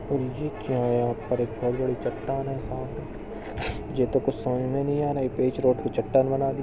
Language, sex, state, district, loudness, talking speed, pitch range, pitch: Hindi, male, Chhattisgarh, Balrampur, -27 LUFS, 145 wpm, 125-135 Hz, 130 Hz